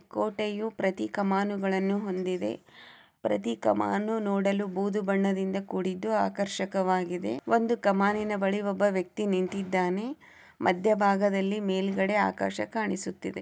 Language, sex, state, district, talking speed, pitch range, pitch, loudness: Kannada, female, Karnataka, Chamarajanagar, 85 wpm, 185-205 Hz, 195 Hz, -28 LUFS